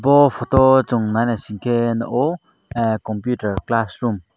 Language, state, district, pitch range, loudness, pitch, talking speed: Kokborok, Tripura, Dhalai, 110-125 Hz, -19 LUFS, 120 Hz, 150 wpm